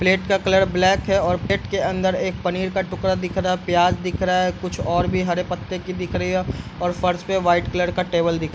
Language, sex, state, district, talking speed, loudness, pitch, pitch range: Hindi, male, Bihar, Bhagalpur, 275 wpm, -21 LUFS, 180 Hz, 175-185 Hz